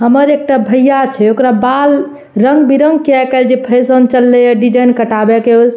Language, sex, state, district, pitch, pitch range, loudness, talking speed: Maithili, female, Bihar, Purnia, 255 Hz, 240-275 Hz, -9 LUFS, 210 wpm